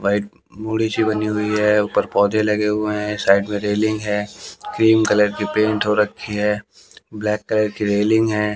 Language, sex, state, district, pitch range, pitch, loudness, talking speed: Hindi, male, Haryana, Jhajjar, 105-110 Hz, 105 Hz, -19 LUFS, 180 wpm